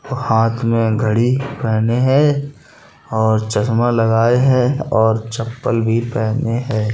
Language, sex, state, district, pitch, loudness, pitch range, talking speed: Hindi, male, Bihar, Gopalganj, 115 Hz, -16 LUFS, 110-125 Hz, 120 wpm